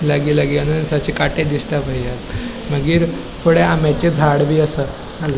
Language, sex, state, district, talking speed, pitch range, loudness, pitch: Konkani, male, Goa, North and South Goa, 145 wpm, 140-155 Hz, -17 LUFS, 150 Hz